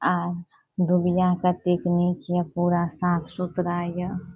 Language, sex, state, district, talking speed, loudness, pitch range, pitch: Maithili, female, Bihar, Saharsa, 110 wpm, -24 LUFS, 175-180 Hz, 175 Hz